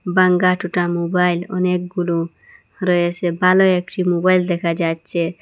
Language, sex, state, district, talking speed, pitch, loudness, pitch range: Bengali, female, Assam, Hailakandi, 120 wpm, 180 Hz, -18 LUFS, 175-185 Hz